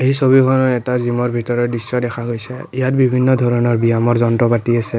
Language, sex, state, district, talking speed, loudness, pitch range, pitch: Assamese, male, Assam, Kamrup Metropolitan, 180 wpm, -16 LUFS, 120-130 Hz, 120 Hz